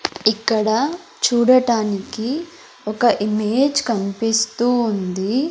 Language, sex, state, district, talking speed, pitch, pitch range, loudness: Telugu, female, Andhra Pradesh, Sri Satya Sai, 65 wpm, 230 Hz, 215-270 Hz, -19 LUFS